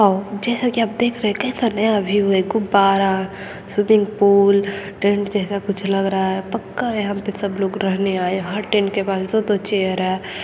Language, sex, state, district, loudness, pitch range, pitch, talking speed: Hindi, female, Bihar, Begusarai, -19 LUFS, 195-210 Hz, 200 Hz, 205 wpm